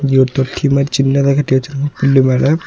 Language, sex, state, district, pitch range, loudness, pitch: Tamil, male, Tamil Nadu, Nilgiris, 135-140 Hz, -14 LUFS, 135 Hz